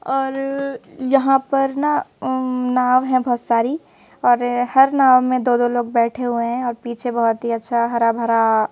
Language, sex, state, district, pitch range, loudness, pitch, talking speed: Hindi, female, Madhya Pradesh, Bhopal, 235-270 Hz, -18 LUFS, 250 Hz, 180 wpm